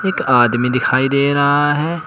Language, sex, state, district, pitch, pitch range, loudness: Hindi, male, Uttar Pradesh, Shamli, 140 Hz, 125-145 Hz, -15 LUFS